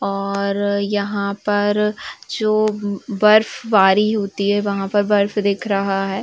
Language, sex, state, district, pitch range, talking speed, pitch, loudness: Hindi, female, Uttar Pradesh, Varanasi, 200-210 Hz, 125 wpm, 205 Hz, -18 LUFS